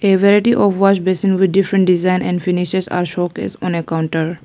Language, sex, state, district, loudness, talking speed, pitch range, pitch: English, female, Arunachal Pradesh, Lower Dibang Valley, -15 LUFS, 190 wpm, 175-195 Hz, 185 Hz